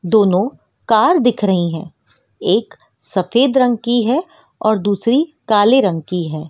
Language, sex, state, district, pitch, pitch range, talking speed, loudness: Hindi, female, Madhya Pradesh, Dhar, 215 Hz, 185-250 Hz, 150 wpm, -16 LUFS